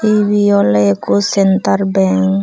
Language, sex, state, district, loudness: Chakma, female, Tripura, Unakoti, -13 LUFS